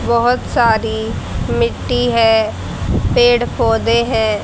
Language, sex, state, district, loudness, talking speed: Hindi, female, Haryana, Charkhi Dadri, -15 LUFS, 95 wpm